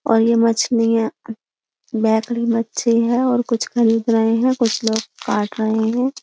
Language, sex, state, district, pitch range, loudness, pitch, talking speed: Hindi, female, Uttar Pradesh, Jyotiba Phule Nagar, 225-235 Hz, -18 LUFS, 230 Hz, 155 wpm